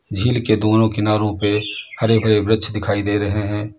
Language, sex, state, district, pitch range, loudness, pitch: Hindi, male, Uttar Pradesh, Lalitpur, 105-110 Hz, -18 LUFS, 105 Hz